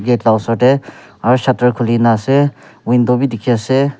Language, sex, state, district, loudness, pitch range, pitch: Nagamese, male, Nagaland, Kohima, -14 LUFS, 115-130 Hz, 125 Hz